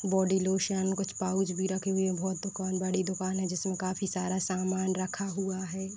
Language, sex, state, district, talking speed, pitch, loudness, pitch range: Hindi, female, Uttar Pradesh, Deoria, 200 wpm, 190 Hz, -31 LUFS, 185-190 Hz